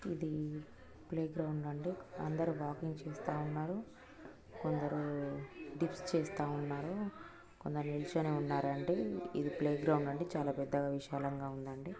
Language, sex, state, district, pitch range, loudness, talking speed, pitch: Telugu, female, Telangana, Nalgonda, 145-165 Hz, -39 LUFS, 105 wpm, 150 Hz